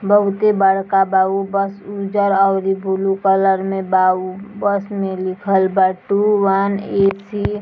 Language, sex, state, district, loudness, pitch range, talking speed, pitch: Bhojpuri, female, Bihar, East Champaran, -17 LUFS, 190-200 Hz, 190 wpm, 195 Hz